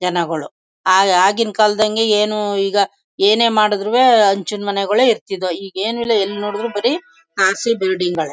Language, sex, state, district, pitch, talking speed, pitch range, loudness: Kannada, female, Karnataka, Mysore, 205 Hz, 130 wpm, 190-220 Hz, -16 LUFS